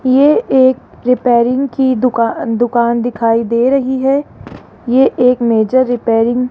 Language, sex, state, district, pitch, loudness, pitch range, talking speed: Hindi, female, Rajasthan, Jaipur, 250 Hz, -13 LUFS, 235-260 Hz, 130 wpm